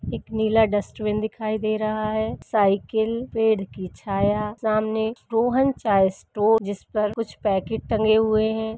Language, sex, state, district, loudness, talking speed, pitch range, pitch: Hindi, female, Uttarakhand, Uttarkashi, -23 LUFS, 150 wpm, 210-220 Hz, 215 Hz